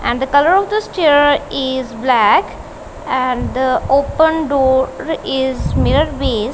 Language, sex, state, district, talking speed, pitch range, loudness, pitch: English, female, Punjab, Kapurthala, 130 wpm, 260-295 Hz, -15 LUFS, 270 Hz